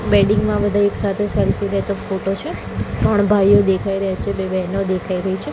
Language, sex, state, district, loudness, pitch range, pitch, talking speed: Gujarati, female, Gujarat, Gandhinagar, -18 LUFS, 185-200 Hz, 195 Hz, 205 wpm